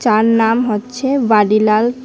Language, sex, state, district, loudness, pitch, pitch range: Bengali, male, Tripura, West Tripura, -14 LUFS, 225 Hz, 215-245 Hz